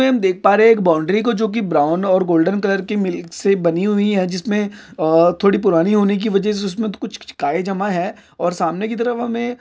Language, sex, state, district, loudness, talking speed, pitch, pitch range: Hindi, male, Maharashtra, Sindhudurg, -17 LUFS, 230 wpm, 200 Hz, 180-215 Hz